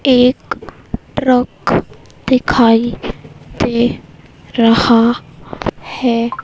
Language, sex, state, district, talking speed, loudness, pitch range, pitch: Hindi, female, Madhya Pradesh, Dhar, 55 wpm, -14 LUFS, 230-255 Hz, 240 Hz